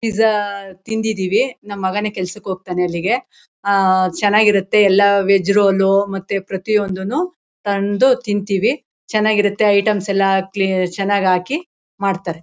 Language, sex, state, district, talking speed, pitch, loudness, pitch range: Kannada, female, Karnataka, Mysore, 110 wpm, 200 Hz, -17 LUFS, 190-210 Hz